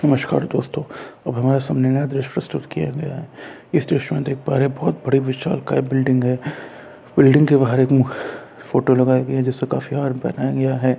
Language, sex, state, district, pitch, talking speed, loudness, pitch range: Hindi, male, Bihar, Purnia, 135 Hz, 215 wpm, -19 LUFS, 130-145 Hz